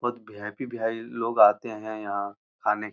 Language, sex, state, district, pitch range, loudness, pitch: Hindi, male, Uttar Pradesh, Muzaffarnagar, 105-115 Hz, -26 LUFS, 110 Hz